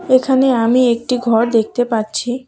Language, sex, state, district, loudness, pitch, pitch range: Bengali, female, West Bengal, Cooch Behar, -15 LUFS, 245 Hz, 230-255 Hz